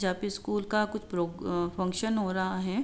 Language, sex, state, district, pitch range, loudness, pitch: Hindi, female, Uttar Pradesh, Jalaun, 185-210 Hz, -31 LUFS, 190 Hz